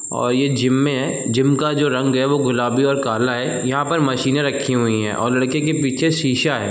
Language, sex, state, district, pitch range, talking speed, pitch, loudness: Hindi, male, Uttar Pradesh, Gorakhpur, 125-140 Hz, 240 wpm, 135 Hz, -18 LUFS